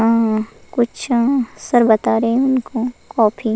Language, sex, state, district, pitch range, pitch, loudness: Hindi, female, Goa, North and South Goa, 225-245 Hz, 230 Hz, -17 LUFS